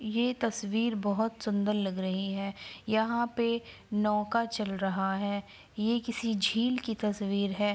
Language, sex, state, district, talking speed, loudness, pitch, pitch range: Hindi, female, Bihar, Araria, 145 wpm, -31 LUFS, 210 Hz, 200-230 Hz